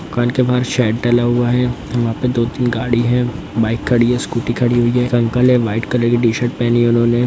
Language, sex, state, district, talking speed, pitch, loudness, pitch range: Hindi, male, Bihar, Jamui, 240 wpm, 120 Hz, -16 LUFS, 120-125 Hz